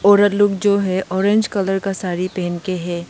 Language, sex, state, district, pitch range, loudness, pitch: Hindi, female, Arunachal Pradesh, Lower Dibang Valley, 185-205 Hz, -18 LUFS, 195 Hz